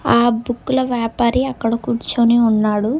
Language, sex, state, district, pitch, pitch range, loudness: Telugu, female, Telangana, Hyderabad, 235 Hz, 230-245 Hz, -17 LUFS